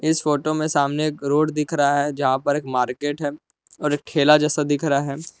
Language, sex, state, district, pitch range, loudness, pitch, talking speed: Hindi, male, Jharkhand, Palamu, 145-150 Hz, -21 LUFS, 145 Hz, 235 wpm